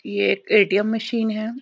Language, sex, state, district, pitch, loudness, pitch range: Hindi, female, Bihar, East Champaran, 215 Hz, -20 LUFS, 200-225 Hz